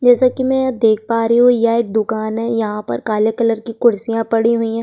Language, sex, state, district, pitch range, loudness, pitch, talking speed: Hindi, female, Uttar Pradesh, Jyotiba Phule Nagar, 220-235 Hz, -16 LUFS, 230 Hz, 260 wpm